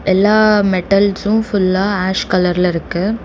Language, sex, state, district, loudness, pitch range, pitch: Tamil, female, Tamil Nadu, Chennai, -14 LUFS, 185-205 Hz, 195 Hz